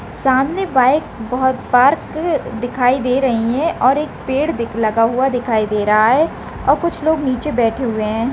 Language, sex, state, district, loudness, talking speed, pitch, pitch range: Hindi, female, Rajasthan, Nagaur, -16 LUFS, 180 wpm, 255 Hz, 230-285 Hz